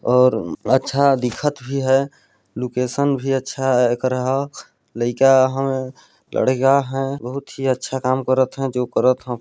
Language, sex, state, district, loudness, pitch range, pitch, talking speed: Hindi, male, Chhattisgarh, Balrampur, -19 LUFS, 125-135 Hz, 130 Hz, 145 wpm